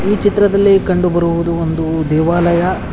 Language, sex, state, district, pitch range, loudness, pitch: Kannada, male, Karnataka, Koppal, 170-195 Hz, -14 LUFS, 175 Hz